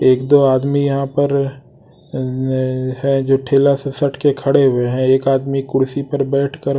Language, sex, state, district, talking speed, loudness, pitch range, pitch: Hindi, male, Odisha, Sambalpur, 175 wpm, -16 LUFS, 130-140 Hz, 135 Hz